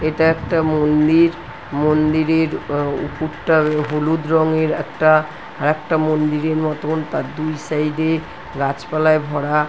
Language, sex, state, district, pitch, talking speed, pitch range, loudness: Bengali, female, West Bengal, North 24 Parganas, 155 Hz, 110 wpm, 150-160 Hz, -18 LUFS